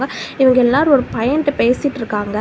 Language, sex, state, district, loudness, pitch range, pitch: Tamil, female, Tamil Nadu, Kanyakumari, -15 LUFS, 230-280 Hz, 255 Hz